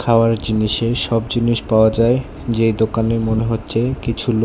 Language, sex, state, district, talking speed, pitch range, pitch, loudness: Bengali, male, Tripura, West Tripura, 160 wpm, 110-120 Hz, 115 Hz, -17 LUFS